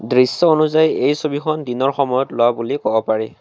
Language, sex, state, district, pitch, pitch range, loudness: Assamese, male, Assam, Kamrup Metropolitan, 135 Hz, 120-155 Hz, -17 LUFS